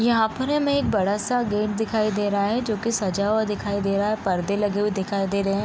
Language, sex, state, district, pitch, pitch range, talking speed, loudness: Hindi, female, Bihar, Vaishali, 210 Hz, 200-220 Hz, 275 wpm, -23 LUFS